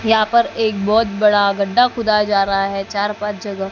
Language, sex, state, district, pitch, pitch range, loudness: Hindi, female, Maharashtra, Gondia, 210 Hz, 200-220 Hz, -17 LUFS